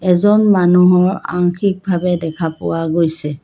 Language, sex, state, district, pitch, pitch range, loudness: Assamese, female, Assam, Kamrup Metropolitan, 180 Hz, 165-185 Hz, -15 LUFS